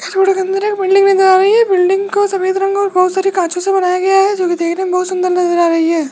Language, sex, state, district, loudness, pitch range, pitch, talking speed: Hindi, male, Rajasthan, Jaipur, -13 LUFS, 365-390 Hz, 380 Hz, 305 wpm